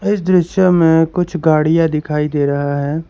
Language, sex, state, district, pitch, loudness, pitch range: Hindi, male, Karnataka, Bangalore, 160 Hz, -14 LUFS, 150-175 Hz